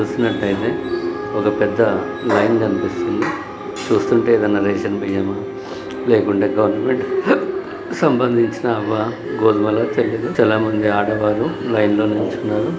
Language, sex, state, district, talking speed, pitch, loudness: Telugu, male, Telangana, Karimnagar, 130 wpm, 120 Hz, -18 LUFS